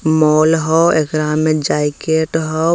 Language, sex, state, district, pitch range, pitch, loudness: Hindi, male, Bihar, Begusarai, 155-160 Hz, 155 Hz, -15 LUFS